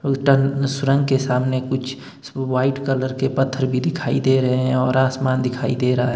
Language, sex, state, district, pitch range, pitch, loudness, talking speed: Hindi, male, Himachal Pradesh, Shimla, 130-135 Hz, 130 Hz, -20 LUFS, 195 wpm